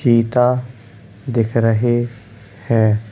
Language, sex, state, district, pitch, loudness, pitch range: Hindi, male, Uttar Pradesh, Jalaun, 115 Hz, -17 LUFS, 110-120 Hz